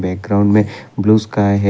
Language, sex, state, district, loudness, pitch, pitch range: Hindi, male, Assam, Kamrup Metropolitan, -15 LUFS, 100 Hz, 100-105 Hz